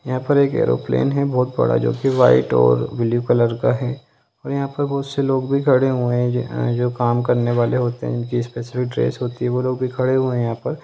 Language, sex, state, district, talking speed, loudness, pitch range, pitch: Hindi, male, Bihar, Gopalganj, 250 wpm, -19 LUFS, 120-130 Hz, 125 Hz